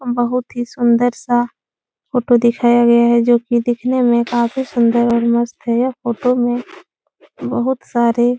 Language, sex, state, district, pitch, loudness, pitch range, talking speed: Hindi, female, Uttar Pradesh, Etah, 240 Hz, -16 LUFS, 235-245 Hz, 165 wpm